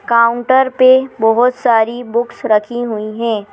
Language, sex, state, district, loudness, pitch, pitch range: Hindi, female, Madhya Pradesh, Bhopal, -14 LUFS, 235 Hz, 225-250 Hz